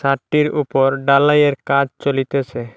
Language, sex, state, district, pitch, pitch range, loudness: Bengali, male, Assam, Hailakandi, 140 Hz, 135-145 Hz, -16 LUFS